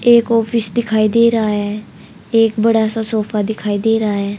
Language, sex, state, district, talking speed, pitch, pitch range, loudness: Hindi, female, Haryana, Charkhi Dadri, 190 wpm, 220 Hz, 210-230 Hz, -15 LUFS